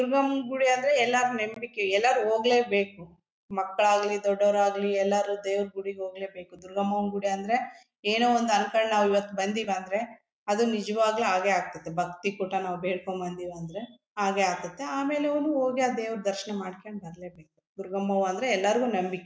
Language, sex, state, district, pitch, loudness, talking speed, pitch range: Kannada, female, Karnataka, Bellary, 200 Hz, -27 LUFS, 160 wpm, 190-225 Hz